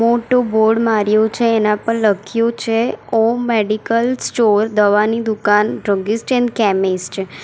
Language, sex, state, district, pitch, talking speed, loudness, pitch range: Gujarati, female, Gujarat, Valsad, 220 Hz, 135 wpm, -16 LUFS, 210-230 Hz